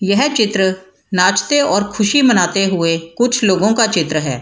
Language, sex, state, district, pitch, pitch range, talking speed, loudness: Hindi, female, Bihar, Gaya, 195 Hz, 180-225 Hz, 175 wpm, -14 LUFS